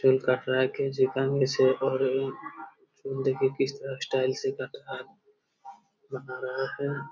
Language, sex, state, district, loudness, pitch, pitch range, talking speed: Hindi, male, Bihar, Jamui, -28 LUFS, 135 Hz, 130-140 Hz, 150 wpm